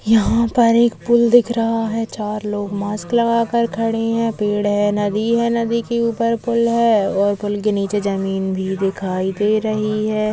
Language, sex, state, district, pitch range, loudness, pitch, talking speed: Hindi, female, Chhattisgarh, Kabirdham, 205-230 Hz, -18 LUFS, 215 Hz, 185 wpm